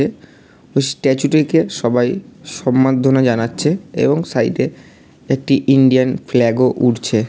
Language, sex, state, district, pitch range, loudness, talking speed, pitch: Bengali, male, West Bengal, Jalpaiguri, 125-140 Hz, -16 LUFS, 115 wpm, 130 Hz